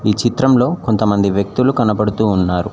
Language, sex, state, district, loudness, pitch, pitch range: Telugu, male, Telangana, Mahabubabad, -15 LUFS, 105 Hz, 100-125 Hz